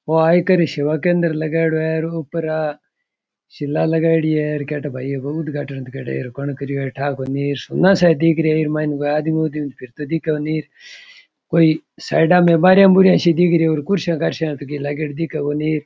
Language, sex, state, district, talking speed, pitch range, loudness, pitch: Rajasthani, male, Rajasthan, Churu, 155 wpm, 145-165 Hz, -18 LUFS, 155 Hz